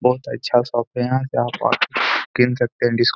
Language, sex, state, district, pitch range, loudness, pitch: Hindi, male, Bihar, Gaya, 120-125 Hz, -20 LUFS, 125 Hz